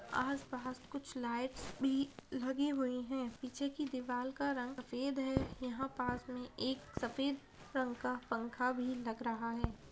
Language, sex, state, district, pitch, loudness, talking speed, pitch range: Hindi, female, Bihar, Madhepura, 255 Hz, -40 LUFS, 155 wpm, 245-270 Hz